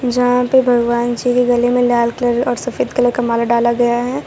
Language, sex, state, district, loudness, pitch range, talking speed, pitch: Hindi, female, Gujarat, Valsad, -15 LUFS, 240-250 Hz, 240 wpm, 245 Hz